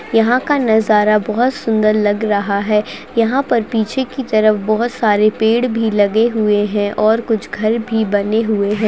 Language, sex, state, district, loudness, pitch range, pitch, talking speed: Hindi, female, Uttarakhand, Uttarkashi, -15 LUFS, 210-230 Hz, 220 Hz, 180 wpm